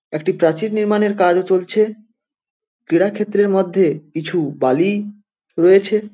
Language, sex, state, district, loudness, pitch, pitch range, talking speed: Bengali, male, West Bengal, Paschim Medinipur, -17 LUFS, 195 Hz, 180-210 Hz, 115 wpm